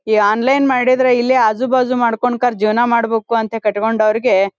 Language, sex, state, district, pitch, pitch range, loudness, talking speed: Kannada, female, Karnataka, Dharwad, 235 Hz, 215-250 Hz, -15 LUFS, 185 wpm